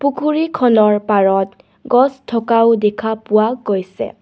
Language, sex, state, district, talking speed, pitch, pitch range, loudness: Assamese, female, Assam, Kamrup Metropolitan, 115 wpm, 230 Hz, 210-255 Hz, -15 LUFS